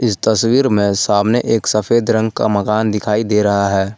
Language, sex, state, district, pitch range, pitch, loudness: Hindi, male, Jharkhand, Garhwa, 100-115 Hz, 105 Hz, -15 LUFS